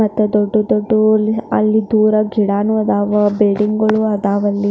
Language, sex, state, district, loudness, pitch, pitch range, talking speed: Kannada, female, Karnataka, Belgaum, -15 LUFS, 215 Hz, 205-215 Hz, 155 wpm